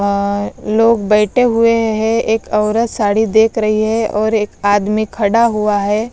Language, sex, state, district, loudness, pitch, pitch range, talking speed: Hindi, female, Bihar, West Champaran, -14 LUFS, 215 Hz, 210-225 Hz, 155 wpm